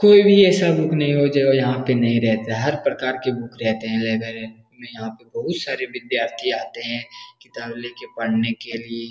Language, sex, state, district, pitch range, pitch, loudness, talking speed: Hindi, male, Bihar, Jahanabad, 115-145 Hz, 120 Hz, -20 LUFS, 205 wpm